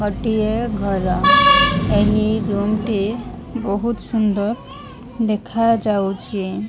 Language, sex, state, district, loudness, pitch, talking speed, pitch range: Odia, female, Odisha, Malkangiri, -18 LUFS, 215 Hz, 70 wpm, 200-225 Hz